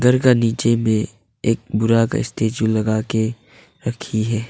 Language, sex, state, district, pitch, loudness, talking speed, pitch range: Hindi, male, Arunachal Pradesh, Longding, 115 Hz, -19 LUFS, 105 wpm, 110-115 Hz